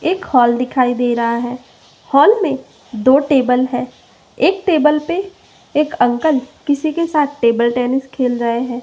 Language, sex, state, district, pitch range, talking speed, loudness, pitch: Hindi, female, Madhya Pradesh, Umaria, 245-310 Hz, 165 wpm, -16 LUFS, 265 Hz